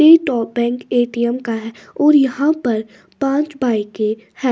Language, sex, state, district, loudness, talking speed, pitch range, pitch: Hindi, female, Bihar, West Champaran, -17 LUFS, 130 wpm, 225-275 Hz, 240 Hz